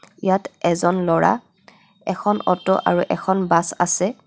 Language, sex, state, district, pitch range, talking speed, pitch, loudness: Assamese, female, Assam, Kamrup Metropolitan, 175-195 Hz, 125 wpm, 190 Hz, -20 LUFS